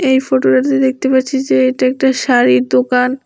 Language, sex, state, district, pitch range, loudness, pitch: Bengali, female, Tripura, West Tripura, 250-265 Hz, -13 LUFS, 260 Hz